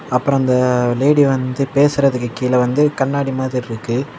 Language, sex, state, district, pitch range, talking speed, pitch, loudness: Tamil, male, Tamil Nadu, Kanyakumari, 125-140 Hz, 145 wpm, 130 Hz, -16 LUFS